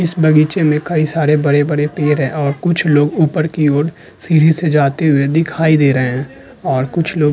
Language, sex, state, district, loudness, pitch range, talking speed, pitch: Hindi, male, Uttarakhand, Tehri Garhwal, -14 LUFS, 145-160 Hz, 220 wpm, 150 Hz